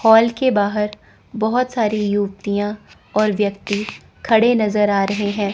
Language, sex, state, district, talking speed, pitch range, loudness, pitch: Hindi, female, Chandigarh, Chandigarh, 140 wpm, 205-225 Hz, -18 LUFS, 210 Hz